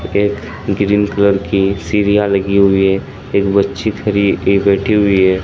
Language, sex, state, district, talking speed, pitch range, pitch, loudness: Hindi, male, Bihar, Katihar, 165 wpm, 100-105 Hz, 100 Hz, -14 LUFS